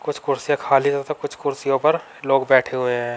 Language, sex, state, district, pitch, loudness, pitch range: Hindi, male, Uttar Pradesh, Varanasi, 135 Hz, -20 LUFS, 130-140 Hz